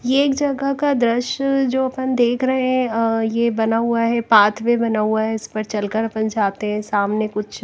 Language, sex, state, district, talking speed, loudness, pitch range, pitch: Hindi, female, Punjab, Kapurthala, 210 wpm, -19 LUFS, 215-255 Hz, 230 Hz